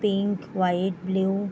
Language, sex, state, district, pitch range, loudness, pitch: Hindi, female, Bihar, Gopalganj, 185-200 Hz, -26 LUFS, 190 Hz